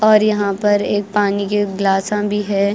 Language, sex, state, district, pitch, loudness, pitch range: Hindi, female, Himachal Pradesh, Shimla, 205 Hz, -17 LUFS, 200-210 Hz